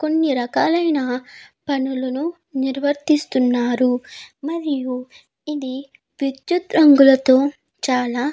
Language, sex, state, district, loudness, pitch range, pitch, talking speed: Telugu, female, Andhra Pradesh, Guntur, -19 LUFS, 255-300 Hz, 275 Hz, 70 wpm